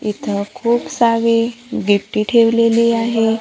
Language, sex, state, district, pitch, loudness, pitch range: Marathi, female, Maharashtra, Gondia, 230 Hz, -16 LUFS, 220-235 Hz